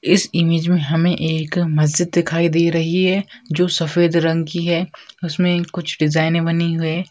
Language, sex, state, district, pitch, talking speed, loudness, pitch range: Hindi, female, Bihar, Jahanabad, 170 Hz, 175 wpm, -18 LUFS, 165-175 Hz